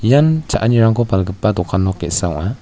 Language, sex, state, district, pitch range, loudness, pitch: Garo, male, Meghalaya, West Garo Hills, 95-120 Hz, -16 LUFS, 105 Hz